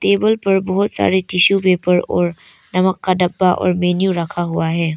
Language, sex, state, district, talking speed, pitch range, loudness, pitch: Hindi, female, Arunachal Pradesh, Papum Pare, 180 wpm, 175-190 Hz, -16 LUFS, 185 Hz